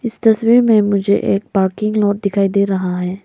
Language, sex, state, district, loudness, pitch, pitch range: Hindi, female, Arunachal Pradesh, Lower Dibang Valley, -15 LUFS, 200 Hz, 195-215 Hz